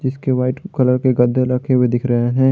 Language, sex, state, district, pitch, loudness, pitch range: Hindi, male, Jharkhand, Garhwa, 130 Hz, -17 LUFS, 125-130 Hz